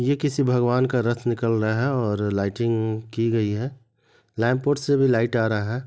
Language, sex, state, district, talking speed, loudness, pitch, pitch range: Hindi, male, Bihar, Madhepura, 195 wpm, -23 LUFS, 120 Hz, 110-130 Hz